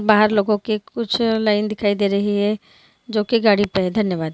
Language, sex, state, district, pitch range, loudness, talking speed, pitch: Hindi, female, Bihar, Muzaffarpur, 205-215 Hz, -19 LUFS, 220 wpm, 210 Hz